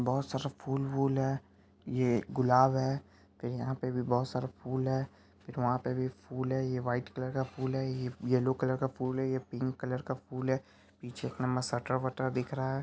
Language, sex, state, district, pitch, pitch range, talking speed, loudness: Hindi, male, Bihar, Supaul, 130 Hz, 125-130 Hz, 200 wpm, -33 LUFS